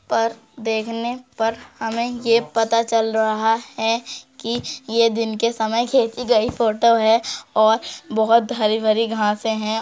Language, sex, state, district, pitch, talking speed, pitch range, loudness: Hindi, female, Uttar Pradesh, Jyotiba Phule Nagar, 225 Hz, 145 wpm, 220-235 Hz, -20 LUFS